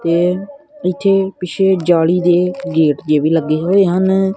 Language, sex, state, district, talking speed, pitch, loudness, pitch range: Punjabi, male, Punjab, Kapurthala, 150 wpm, 180 Hz, -15 LUFS, 170-190 Hz